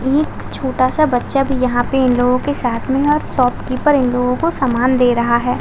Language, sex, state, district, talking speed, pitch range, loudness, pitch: Hindi, female, Uttar Pradesh, Gorakhpur, 225 wpm, 245-275 Hz, -16 LUFS, 255 Hz